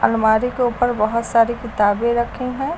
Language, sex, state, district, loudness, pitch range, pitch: Hindi, female, Uttar Pradesh, Lucknow, -18 LUFS, 220-245 Hz, 235 Hz